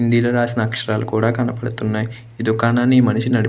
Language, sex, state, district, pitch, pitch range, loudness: Telugu, male, Andhra Pradesh, Krishna, 115 Hz, 110-120 Hz, -18 LUFS